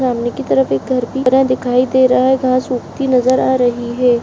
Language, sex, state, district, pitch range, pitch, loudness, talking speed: Hindi, female, Rajasthan, Churu, 245-260 Hz, 255 Hz, -14 LUFS, 240 wpm